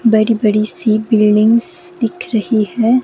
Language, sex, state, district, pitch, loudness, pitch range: Hindi, female, Himachal Pradesh, Shimla, 220 Hz, -14 LUFS, 215-230 Hz